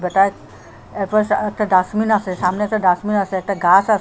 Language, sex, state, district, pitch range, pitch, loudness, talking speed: Bengali, female, Assam, Hailakandi, 180-210 Hz, 195 Hz, -17 LUFS, 180 wpm